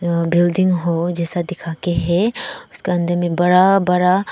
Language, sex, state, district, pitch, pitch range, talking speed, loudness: Hindi, female, Arunachal Pradesh, Papum Pare, 175 Hz, 170-185 Hz, 165 wpm, -17 LUFS